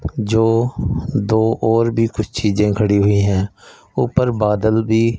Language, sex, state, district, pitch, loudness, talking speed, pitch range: Hindi, male, Punjab, Fazilka, 110 Hz, -17 LUFS, 140 wpm, 105-115 Hz